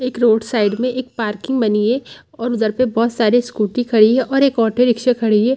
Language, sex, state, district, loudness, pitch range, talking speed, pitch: Hindi, female, Chhattisgarh, Rajnandgaon, -16 LUFS, 220-250 Hz, 235 wpm, 235 Hz